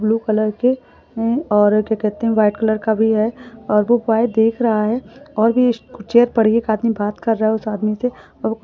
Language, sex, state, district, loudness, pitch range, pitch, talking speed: Hindi, female, Rajasthan, Churu, -17 LUFS, 215-235 Hz, 225 Hz, 200 wpm